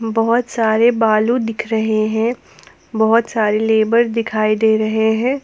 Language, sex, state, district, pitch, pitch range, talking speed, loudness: Hindi, female, Jharkhand, Ranchi, 225 Hz, 220-230 Hz, 145 wpm, -16 LUFS